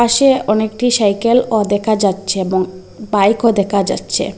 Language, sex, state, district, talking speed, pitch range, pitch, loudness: Bengali, female, Assam, Hailakandi, 150 wpm, 200-230 Hz, 210 Hz, -15 LUFS